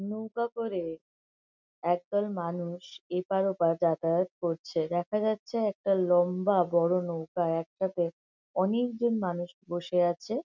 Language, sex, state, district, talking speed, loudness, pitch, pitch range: Bengali, female, West Bengal, North 24 Parganas, 120 wpm, -30 LUFS, 180 Hz, 170-205 Hz